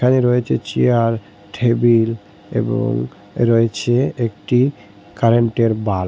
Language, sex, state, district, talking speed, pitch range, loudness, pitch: Bengali, male, Assam, Hailakandi, 90 wpm, 100-120 Hz, -17 LUFS, 115 Hz